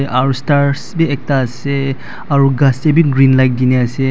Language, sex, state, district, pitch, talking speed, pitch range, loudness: Nagamese, male, Nagaland, Dimapur, 135 Hz, 175 wpm, 130-140 Hz, -14 LUFS